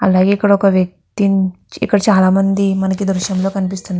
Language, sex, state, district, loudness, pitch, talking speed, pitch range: Telugu, female, Andhra Pradesh, Guntur, -15 LUFS, 195 Hz, 195 wpm, 185-200 Hz